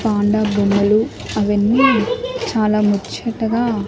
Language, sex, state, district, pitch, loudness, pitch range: Telugu, male, Andhra Pradesh, Annamaya, 215 Hz, -17 LUFS, 205-235 Hz